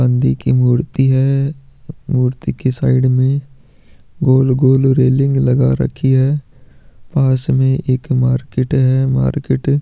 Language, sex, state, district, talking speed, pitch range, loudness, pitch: Hindi, male, Chhattisgarh, Sukma, 135 wpm, 130-135 Hz, -15 LUFS, 130 Hz